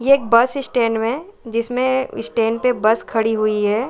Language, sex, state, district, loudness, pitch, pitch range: Hindi, female, Bihar, Saran, -18 LUFS, 230 Hz, 225-255 Hz